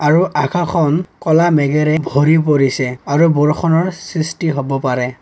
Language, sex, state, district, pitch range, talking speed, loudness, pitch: Assamese, male, Assam, Kamrup Metropolitan, 145-165 Hz, 125 wpm, -15 LUFS, 150 Hz